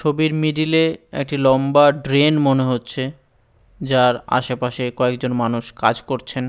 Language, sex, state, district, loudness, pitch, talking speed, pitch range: Bengali, male, West Bengal, Dakshin Dinajpur, -18 LUFS, 130 Hz, 120 wpm, 125-145 Hz